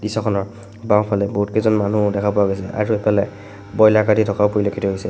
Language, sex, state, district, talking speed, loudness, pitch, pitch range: Assamese, male, Assam, Sonitpur, 175 wpm, -18 LUFS, 105 Hz, 100-105 Hz